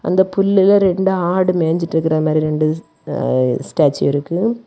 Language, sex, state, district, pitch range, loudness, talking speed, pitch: Tamil, female, Tamil Nadu, Kanyakumari, 155-190 Hz, -16 LUFS, 115 wpm, 170 Hz